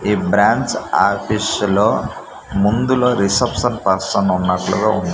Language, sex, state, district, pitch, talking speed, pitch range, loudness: Telugu, male, Andhra Pradesh, Manyam, 100 Hz, 95 wpm, 95-120 Hz, -16 LUFS